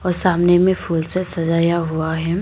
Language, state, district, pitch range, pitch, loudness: Hindi, Arunachal Pradesh, Lower Dibang Valley, 165-180 Hz, 170 Hz, -16 LUFS